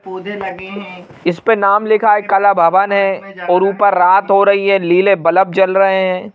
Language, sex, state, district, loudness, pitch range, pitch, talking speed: Hindi, male, Madhya Pradesh, Bhopal, -13 LUFS, 185-200 Hz, 195 Hz, 200 wpm